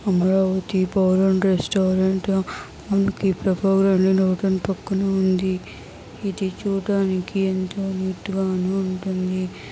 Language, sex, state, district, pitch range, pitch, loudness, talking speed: Telugu, female, Andhra Pradesh, Chittoor, 185-195 Hz, 190 Hz, -22 LUFS, 75 wpm